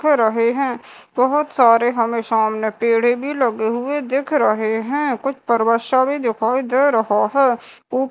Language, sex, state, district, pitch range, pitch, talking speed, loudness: Hindi, female, Madhya Pradesh, Dhar, 230-275 Hz, 240 Hz, 165 wpm, -18 LUFS